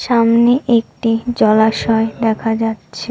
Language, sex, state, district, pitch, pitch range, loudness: Bengali, female, West Bengal, Cooch Behar, 225 Hz, 225-235 Hz, -15 LUFS